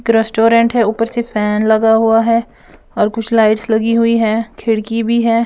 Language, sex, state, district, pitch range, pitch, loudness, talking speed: Hindi, female, Bihar, Patna, 220-230 Hz, 225 Hz, -14 LUFS, 185 wpm